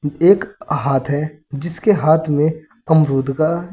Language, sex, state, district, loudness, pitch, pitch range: Hindi, male, Uttar Pradesh, Saharanpur, -17 LUFS, 155 Hz, 145-170 Hz